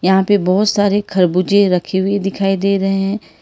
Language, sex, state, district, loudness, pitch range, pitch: Hindi, female, Karnataka, Bangalore, -15 LUFS, 190-200 Hz, 195 Hz